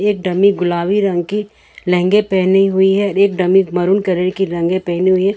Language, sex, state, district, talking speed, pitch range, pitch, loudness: Hindi, female, Jharkhand, Ranchi, 180 wpm, 180-200 Hz, 190 Hz, -15 LUFS